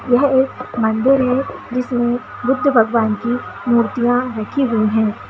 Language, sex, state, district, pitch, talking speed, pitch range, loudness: Hindi, female, Chhattisgarh, Raigarh, 245 Hz, 135 wpm, 220-255 Hz, -17 LUFS